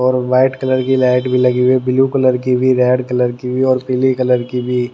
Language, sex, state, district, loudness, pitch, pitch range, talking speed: Hindi, male, Haryana, Jhajjar, -14 LUFS, 125 Hz, 125-130 Hz, 265 wpm